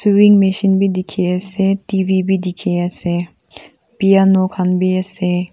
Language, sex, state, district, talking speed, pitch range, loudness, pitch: Nagamese, female, Nagaland, Kohima, 140 wpm, 180-195 Hz, -15 LUFS, 190 Hz